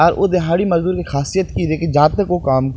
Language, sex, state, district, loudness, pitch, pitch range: Maithili, male, Bihar, Purnia, -16 LUFS, 170 Hz, 150-185 Hz